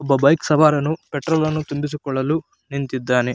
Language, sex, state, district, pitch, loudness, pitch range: Kannada, male, Karnataka, Chamarajanagar, 145 Hz, -20 LUFS, 135-155 Hz